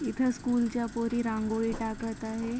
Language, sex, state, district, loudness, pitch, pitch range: Marathi, female, Maharashtra, Chandrapur, -30 LUFS, 230 Hz, 225-240 Hz